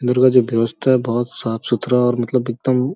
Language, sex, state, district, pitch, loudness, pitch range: Hindi, male, Uttar Pradesh, Gorakhpur, 125 Hz, -18 LUFS, 120-125 Hz